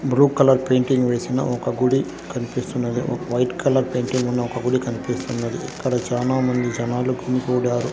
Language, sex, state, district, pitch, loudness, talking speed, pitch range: Telugu, male, Andhra Pradesh, Sri Satya Sai, 125 Hz, -21 LUFS, 150 wpm, 120-130 Hz